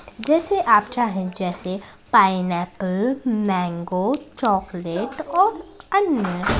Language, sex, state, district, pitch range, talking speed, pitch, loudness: Hindi, female, Bihar, Saharsa, 185-290 Hz, 90 wpm, 205 Hz, -21 LUFS